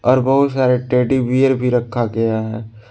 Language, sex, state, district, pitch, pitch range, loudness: Hindi, male, Jharkhand, Ranchi, 125 Hz, 115-130 Hz, -17 LUFS